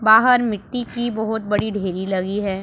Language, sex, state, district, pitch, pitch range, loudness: Hindi, female, Punjab, Pathankot, 215 Hz, 195-235 Hz, -20 LUFS